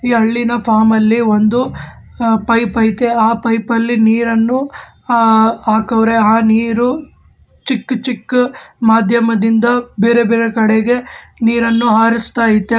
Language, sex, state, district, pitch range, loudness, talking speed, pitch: Kannada, male, Karnataka, Bangalore, 225-240 Hz, -13 LUFS, 105 wpm, 230 Hz